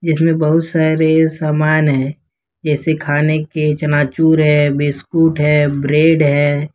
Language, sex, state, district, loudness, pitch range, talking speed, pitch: Hindi, male, Jharkhand, Ranchi, -14 LUFS, 145-160 Hz, 135 wpm, 155 Hz